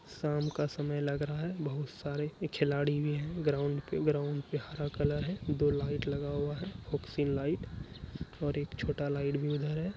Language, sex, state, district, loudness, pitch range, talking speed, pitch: Hindi, male, Bihar, Araria, -34 LUFS, 145-150 Hz, 185 wpm, 145 Hz